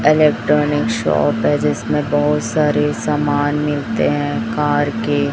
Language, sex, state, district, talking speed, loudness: Hindi, male, Chhattisgarh, Raipur, 125 wpm, -17 LUFS